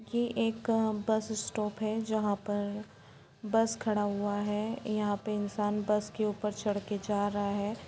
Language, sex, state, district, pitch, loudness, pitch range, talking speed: Hindi, female, Jharkhand, Jamtara, 210 Hz, -32 LUFS, 205-220 Hz, 160 wpm